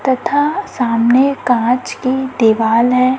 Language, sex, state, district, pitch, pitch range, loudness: Hindi, female, Chhattisgarh, Raipur, 255 Hz, 240-265 Hz, -14 LUFS